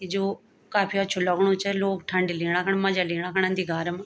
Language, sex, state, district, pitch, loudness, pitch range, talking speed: Garhwali, female, Uttarakhand, Tehri Garhwal, 190 Hz, -25 LUFS, 180-195 Hz, 220 wpm